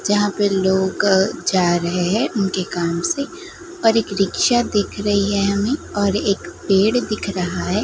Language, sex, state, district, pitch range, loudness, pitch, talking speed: Hindi, female, Gujarat, Gandhinagar, 190-220 Hz, -19 LUFS, 200 Hz, 170 wpm